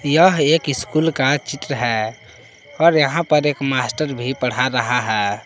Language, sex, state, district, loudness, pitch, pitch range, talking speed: Hindi, male, Jharkhand, Palamu, -18 LUFS, 135 Hz, 125-150 Hz, 165 wpm